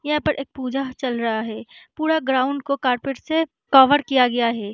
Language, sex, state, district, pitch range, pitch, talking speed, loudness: Hindi, female, Bihar, Vaishali, 250-290 Hz, 270 Hz, 205 wpm, -20 LUFS